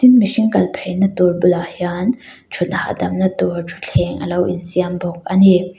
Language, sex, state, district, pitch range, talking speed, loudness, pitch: Mizo, female, Mizoram, Aizawl, 175-195 Hz, 195 wpm, -17 LUFS, 180 Hz